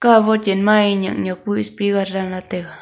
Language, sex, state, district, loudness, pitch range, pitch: Wancho, female, Arunachal Pradesh, Longding, -18 LUFS, 190-215 Hz, 200 Hz